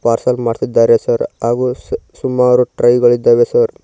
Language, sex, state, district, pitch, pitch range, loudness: Kannada, male, Karnataka, Koppal, 125 Hz, 120-125 Hz, -13 LUFS